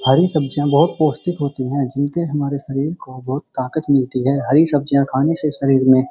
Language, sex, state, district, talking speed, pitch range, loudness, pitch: Hindi, male, Uttar Pradesh, Muzaffarnagar, 205 wpm, 135-150 Hz, -17 LUFS, 140 Hz